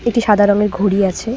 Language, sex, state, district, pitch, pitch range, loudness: Bengali, female, West Bengal, Cooch Behar, 210 Hz, 200-230 Hz, -14 LUFS